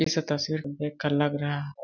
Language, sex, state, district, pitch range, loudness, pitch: Hindi, male, Chhattisgarh, Balrampur, 145-155 Hz, -28 LUFS, 145 Hz